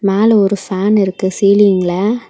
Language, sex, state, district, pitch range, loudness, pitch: Tamil, female, Tamil Nadu, Chennai, 190-210 Hz, -13 LUFS, 200 Hz